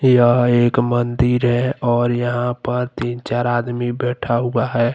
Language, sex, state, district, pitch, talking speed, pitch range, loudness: Hindi, male, Jharkhand, Deoghar, 120 Hz, 160 wpm, 120-125 Hz, -18 LUFS